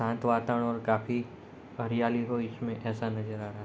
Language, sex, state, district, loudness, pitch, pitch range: Hindi, male, Bihar, Sitamarhi, -31 LUFS, 115 Hz, 115-120 Hz